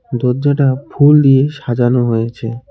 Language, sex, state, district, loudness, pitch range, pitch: Bengali, male, West Bengal, Alipurduar, -13 LUFS, 120-140 Hz, 130 Hz